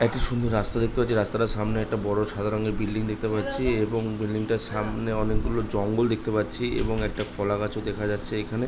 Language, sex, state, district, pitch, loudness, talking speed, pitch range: Bengali, male, West Bengal, Dakshin Dinajpur, 110 Hz, -27 LUFS, 205 wpm, 105-115 Hz